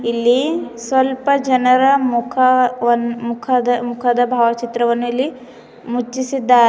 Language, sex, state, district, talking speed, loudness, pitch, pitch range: Kannada, female, Karnataka, Bidar, 90 wpm, -16 LUFS, 245 Hz, 235-255 Hz